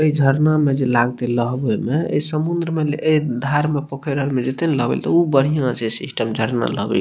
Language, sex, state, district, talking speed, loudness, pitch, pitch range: Maithili, male, Bihar, Madhepura, 240 wpm, -19 LUFS, 140 Hz, 125-155 Hz